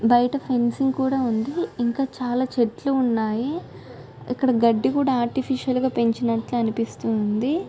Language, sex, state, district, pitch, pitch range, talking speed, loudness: Telugu, female, Andhra Pradesh, Guntur, 245 Hz, 230-265 Hz, 110 wpm, -23 LUFS